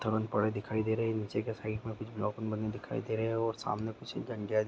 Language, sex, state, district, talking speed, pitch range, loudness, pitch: Hindi, male, Jharkhand, Jamtara, 245 wpm, 110-115 Hz, -35 LUFS, 110 Hz